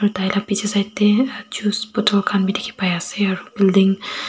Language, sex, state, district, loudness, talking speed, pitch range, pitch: Nagamese, female, Nagaland, Dimapur, -19 LUFS, 180 wpm, 195-210 Hz, 205 Hz